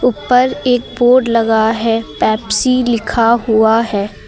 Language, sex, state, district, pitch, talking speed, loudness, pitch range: Hindi, female, Uttar Pradesh, Lucknow, 230 Hz, 125 wpm, -13 LUFS, 220-250 Hz